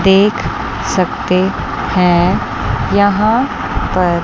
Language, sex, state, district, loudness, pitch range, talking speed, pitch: Hindi, female, Chandigarh, Chandigarh, -14 LUFS, 180-205 Hz, 70 wpm, 190 Hz